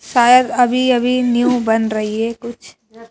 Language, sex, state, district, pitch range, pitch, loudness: Hindi, female, Madhya Pradesh, Bhopal, 225-250 Hz, 240 Hz, -15 LUFS